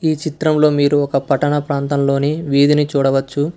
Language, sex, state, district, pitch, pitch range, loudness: Telugu, male, Karnataka, Bangalore, 145 Hz, 140-150 Hz, -16 LUFS